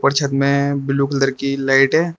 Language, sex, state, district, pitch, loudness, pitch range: Hindi, male, Arunachal Pradesh, Lower Dibang Valley, 140 Hz, -17 LUFS, 135-140 Hz